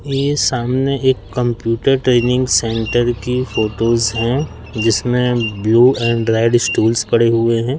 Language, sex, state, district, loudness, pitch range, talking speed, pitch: Hindi, male, Madhya Pradesh, Katni, -15 LUFS, 115-125 Hz, 125 wpm, 120 Hz